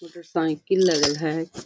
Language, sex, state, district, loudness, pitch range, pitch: Magahi, female, Bihar, Gaya, -23 LUFS, 155-170 Hz, 165 Hz